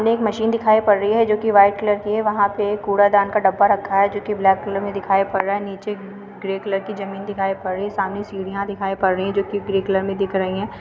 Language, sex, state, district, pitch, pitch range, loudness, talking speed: Hindi, female, Uttar Pradesh, Varanasi, 200 Hz, 195-205 Hz, -19 LUFS, 265 wpm